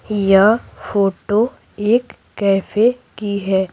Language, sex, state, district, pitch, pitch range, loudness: Hindi, female, Bihar, Patna, 205 Hz, 195-220 Hz, -17 LUFS